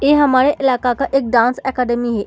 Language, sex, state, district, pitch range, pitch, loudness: Hindi, female, Bihar, Samastipur, 245-270 Hz, 255 Hz, -15 LUFS